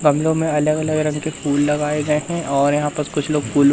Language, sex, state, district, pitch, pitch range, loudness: Hindi, male, Madhya Pradesh, Katni, 150 Hz, 145-155 Hz, -19 LUFS